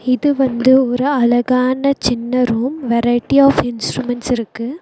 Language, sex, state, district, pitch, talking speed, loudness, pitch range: Tamil, female, Tamil Nadu, Nilgiris, 250 Hz, 125 wpm, -15 LUFS, 240-265 Hz